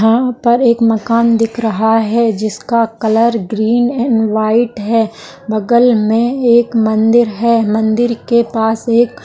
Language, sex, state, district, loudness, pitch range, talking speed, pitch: Hindi, female, Rajasthan, Nagaur, -13 LUFS, 220-235 Hz, 150 wpm, 230 Hz